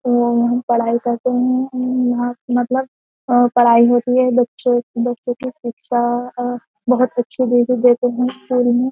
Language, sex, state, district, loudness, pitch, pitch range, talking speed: Hindi, female, Uttar Pradesh, Jyotiba Phule Nagar, -17 LUFS, 245 Hz, 240-250 Hz, 130 wpm